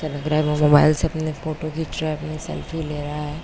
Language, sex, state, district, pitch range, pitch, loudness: Hindi, female, Uttar Pradesh, Varanasi, 150-155 Hz, 155 Hz, -22 LUFS